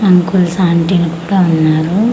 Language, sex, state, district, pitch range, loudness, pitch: Telugu, female, Andhra Pradesh, Manyam, 170-190 Hz, -12 LUFS, 180 Hz